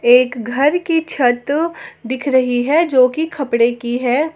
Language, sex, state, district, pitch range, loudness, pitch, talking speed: Hindi, female, Jharkhand, Ranchi, 245-310 Hz, -16 LUFS, 260 Hz, 150 wpm